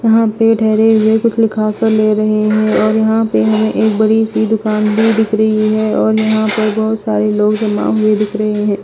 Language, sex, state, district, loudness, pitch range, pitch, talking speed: Hindi, female, Bihar, West Champaran, -13 LUFS, 215-220 Hz, 215 Hz, 225 wpm